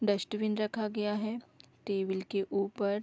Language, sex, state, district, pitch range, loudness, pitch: Hindi, female, Bihar, Darbhanga, 200-215 Hz, -34 LUFS, 210 Hz